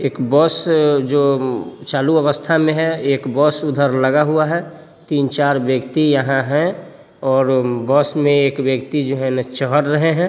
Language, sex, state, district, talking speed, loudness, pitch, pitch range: Bhojpuri, male, Bihar, Sitamarhi, 165 wpm, -16 LUFS, 145 Hz, 135-155 Hz